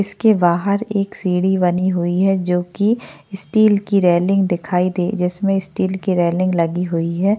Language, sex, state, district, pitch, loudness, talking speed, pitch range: Hindi, female, Maharashtra, Chandrapur, 185 Hz, -17 LUFS, 170 wpm, 180-200 Hz